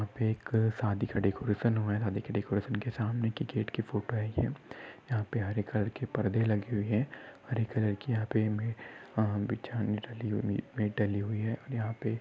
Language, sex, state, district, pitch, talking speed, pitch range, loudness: Hindi, male, Maharashtra, Sindhudurg, 110 Hz, 180 wpm, 105-115 Hz, -33 LUFS